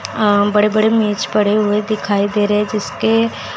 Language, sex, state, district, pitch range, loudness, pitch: Hindi, female, Chandigarh, Chandigarh, 200-210 Hz, -15 LUFS, 205 Hz